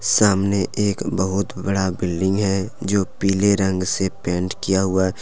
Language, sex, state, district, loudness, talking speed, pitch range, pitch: Hindi, male, Jharkhand, Deoghar, -20 LUFS, 150 wpm, 95-100 Hz, 95 Hz